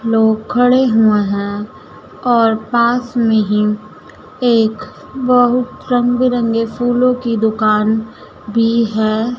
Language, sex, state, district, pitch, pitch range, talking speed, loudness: Hindi, female, Madhya Pradesh, Dhar, 230 Hz, 215-245 Hz, 110 wpm, -15 LUFS